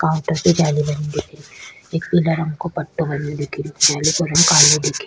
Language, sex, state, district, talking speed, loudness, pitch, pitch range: Rajasthani, female, Rajasthan, Churu, 225 wpm, -17 LUFS, 155 Hz, 150-165 Hz